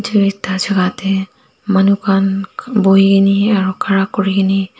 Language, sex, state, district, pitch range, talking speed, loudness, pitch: Nagamese, female, Nagaland, Dimapur, 195-200 Hz, 115 wpm, -14 LUFS, 195 Hz